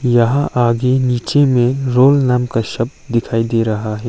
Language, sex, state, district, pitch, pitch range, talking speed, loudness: Hindi, male, Arunachal Pradesh, Longding, 120 Hz, 115-130 Hz, 175 wpm, -15 LUFS